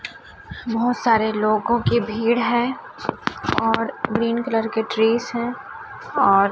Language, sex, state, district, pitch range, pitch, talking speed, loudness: Hindi, female, Chhattisgarh, Raipur, 220-240 Hz, 230 Hz, 120 wpm, -21 LUFS